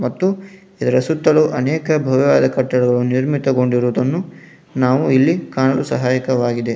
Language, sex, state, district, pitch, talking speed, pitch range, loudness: Kannada, male, Karnataka, Dharwad, 130 Hz, 100 wpm, 125-155 Hz, -16 LUFS